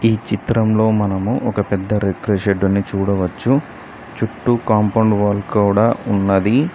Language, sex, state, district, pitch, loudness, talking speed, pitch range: Telugu, male, Telangana, Mahabubabad, 105 Hz, -17 LUFS, 125 wpm, 100-115 Hz